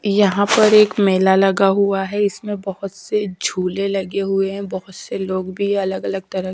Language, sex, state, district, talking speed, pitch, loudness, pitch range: Hindi, female, Punjab, Kapurthala, 185 wpm, 195 Hz, -18 LUFS, 190-200 Hz